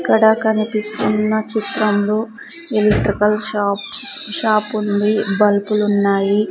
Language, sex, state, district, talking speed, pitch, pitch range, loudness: Telugu, female, Andhra Pradesh, Sri Satya Sai, 75 wpm, 210 Hz, 205-215 Hz, -17 LUFS